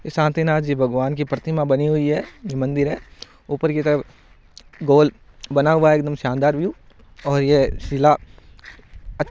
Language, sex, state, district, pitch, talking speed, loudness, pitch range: Marwari, male, Rajasthan, Nagaur, 145 Hz, 160 wpm, -20 LUFS, 135-150 Hz